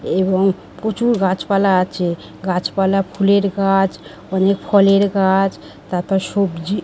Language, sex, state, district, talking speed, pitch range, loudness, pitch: Bengali, female, West Bengal, Dakshin Dinajpur, 105 wpm, 185-200 Hz, -17 LUFS, 195 Hz